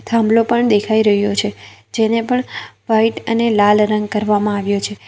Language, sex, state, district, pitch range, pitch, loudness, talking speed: Gujarati, female, Gujarat, Valsad, 210-230 Hz, 215 Hz, -16 LUFS, 165 wpm